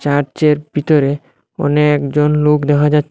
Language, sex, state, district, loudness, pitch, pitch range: Bengali, male, Assam, Hailakandi, -14 LUFS, 150 Hz, 145-150 Hz